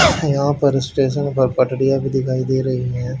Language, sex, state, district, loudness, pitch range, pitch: Hindi, male, Haryana, Charkhi Dadri, -18 LUFS, 130-140 Hz, 130 Hz